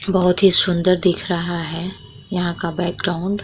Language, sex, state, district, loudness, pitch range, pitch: Hindi, female, Uttar Pradesh, Muzaffarnagar, -18 LUFS, 170-185 Hz, 180 Hz